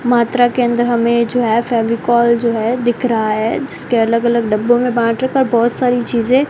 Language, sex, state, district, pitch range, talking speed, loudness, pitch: Hindi, female, Rajasthan, Bikaner, 230-245 Hz, 215 wpm, -14 LUFS, 235 Hz